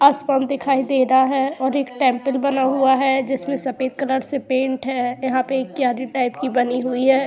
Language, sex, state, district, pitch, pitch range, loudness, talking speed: Hindi, female, Uttar Pradesh, Jyotiba Phule Nagar, 265 Hz, 260-270 Hz, -20 LUFS, 215 wpm